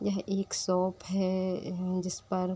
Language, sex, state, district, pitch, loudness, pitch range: Hindi, female, Uttar Pradesh, Deoria, 185 Hz, -32 LUFS, 185-190 Hz